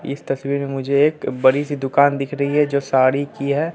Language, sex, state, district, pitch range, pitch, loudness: Hindi, male, Bihar, Katihar, 135-145 Hz, 140 Hz, -19 LUFS